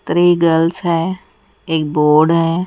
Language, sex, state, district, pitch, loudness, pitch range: Hindi, female, Odisha, Nuapada, 165 Hz, -14 LUFS, 160-175 Hz